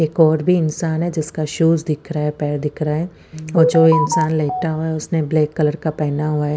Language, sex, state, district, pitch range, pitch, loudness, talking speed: Hindi, female, Chandigarh, Chandigarh, 150-165 Hz, 155 Hz, -18 LUFS, 245 wpm